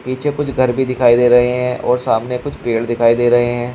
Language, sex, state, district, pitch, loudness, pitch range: Hindi, male, Uttar Pradesh, Shamli, 125 Hz, -15 LUFS, 120-130 Hz